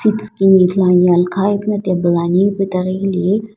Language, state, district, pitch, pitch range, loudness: Sumi, Nagaland, Dimapur, 190 Hz, 180-200 Hz, -14 LUFS